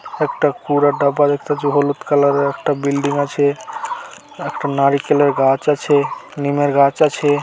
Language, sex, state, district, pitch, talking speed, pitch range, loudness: Bengali, male, West Bengal, Dakshin Dinajpur, 145 Hz, 135 wpm, 140-145 Hz, -17 LUFS